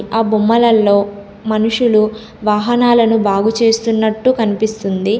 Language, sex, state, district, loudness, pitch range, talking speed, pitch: Telugu, female, Telangana, Komaram Bheem, -14 LUFS, 210-230 Hz, 80 wpm, 220 Hz